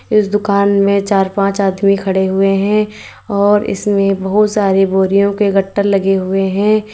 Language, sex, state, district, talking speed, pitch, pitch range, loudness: Hindi, female, Uttar Pradesh, Lalitpur, 165 wpm, 200 Hz, 195-205 Hz, -13 LUFS